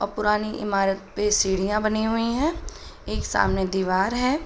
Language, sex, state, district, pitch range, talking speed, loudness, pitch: Hindi, female, Uttar Pradesh, Budaun, 195-225 Hz, 160 wpm, -23 LUFS, 210 Hz